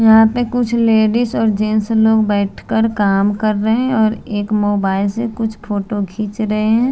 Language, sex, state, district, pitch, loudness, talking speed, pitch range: Hindi, female, Bihar, Patna, 220 Hz, -16 LUFS, 190 wpm, 205-225 Hz